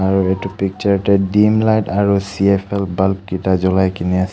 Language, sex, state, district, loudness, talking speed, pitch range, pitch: Assamese, male, Assam, Kamrup Metropolitan, -16 LUFS, 180 wpm, 95-100 Hz, 95 Hz